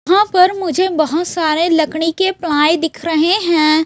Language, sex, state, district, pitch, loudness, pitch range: Hindi, female, Chhattisgarh, Raipur, 330 Hz, -14 LUFS, 315-365 Hz